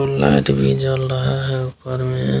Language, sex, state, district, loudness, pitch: Hindi, male, Bihar, Kishanganj, -19 LUFS, 130 Hz